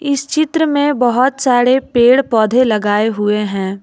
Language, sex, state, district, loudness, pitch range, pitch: Hindi, female, Jharkhand, Ranchi, -13 LUFS, 215-275 Hz, 250 Hz